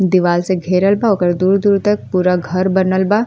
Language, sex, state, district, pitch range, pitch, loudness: Bhojpuri, female, Uttar Pradesh, Ghazipur, 180-200 Hz, 185 Hz, -15 LUFS